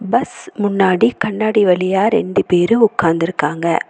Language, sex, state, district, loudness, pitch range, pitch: Tamil, female, Tamil Nadu, Nilgiris, -15 LUFS, 175-215 Hz, 195 Hz